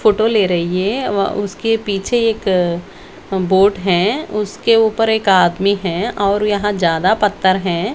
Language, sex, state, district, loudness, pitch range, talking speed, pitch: Hindi, female, Bihar, Patna, -16 LUFS, 185-210 Hz, 150 wpm, 200 Hz